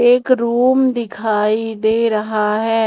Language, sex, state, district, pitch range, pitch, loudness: Hindi, female, Madhya Pradesh, Umaria, 220-245 Hz, 225 Hz, -16 LUFS